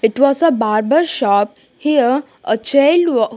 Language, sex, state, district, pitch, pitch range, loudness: English, female, Punjab, Kapurthala, 270 Hz, 220-295 Hz, -15 LUFS